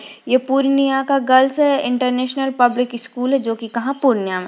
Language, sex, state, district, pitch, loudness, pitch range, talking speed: Hindi, female, Bihar, Purnia, 255 Hz, -17 LUFS, 245-275 Hz, 175 wpm